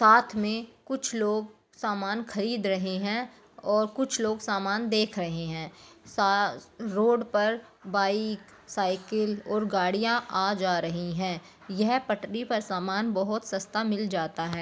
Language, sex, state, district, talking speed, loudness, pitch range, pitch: Hindi, female, Bihar, Begusarai, 135 wpm, -28 LUFS, 190-220 Hz, 210 Hz